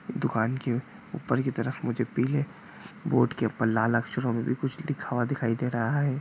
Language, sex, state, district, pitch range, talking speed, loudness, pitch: Bhojpuri, male, Bihar, Saran, 115-140 Hz, 205 wpm, -28 LUFS, 125 Hz